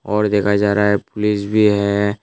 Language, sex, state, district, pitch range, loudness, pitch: Hindi, male, Tripura, West Tripura, 100-105 Hz, -17 LUFS, 105 Hz